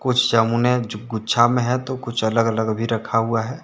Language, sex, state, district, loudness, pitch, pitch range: Hindi, male, Jharkhand, Deoghar, -20 LUFS, 115 Hz, 115-125 Hz